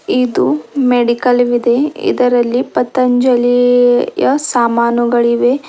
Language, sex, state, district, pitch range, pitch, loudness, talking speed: Kannada, female, Karnataka, Bidar, 240-255 Hz, 245 Hz, -13 LUFS, 65 wpm